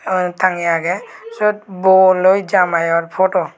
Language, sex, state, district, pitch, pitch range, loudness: Chakma, male, Tripura, West Tripura, 185 Hz, 175-190 Hz, -15 LUFS